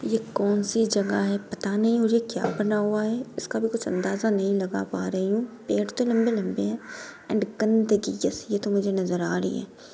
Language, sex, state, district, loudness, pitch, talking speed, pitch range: Hindi, female, Bihar, Sitamarhi, -25 LUFS, 210 Hz, 205 wpm, 195-225 Hz